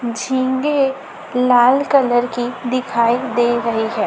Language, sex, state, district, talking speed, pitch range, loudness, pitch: Hindi, female, Chhattisgarh, Raipur, 120 wpm, 240-260 Hz, -17 LUFS, 245 Hz